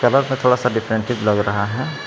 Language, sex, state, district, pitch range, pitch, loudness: Hindi, male, Jharkhand, Palamu, 110-130 Hz, 120 Hz, -19 LUFS